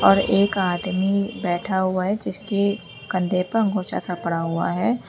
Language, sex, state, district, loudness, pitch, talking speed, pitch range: Hindi, female, Uttar Pradesh, Lalitpur, -22 LUFS, 185 Hz, 165 wpm, 175-200 Hz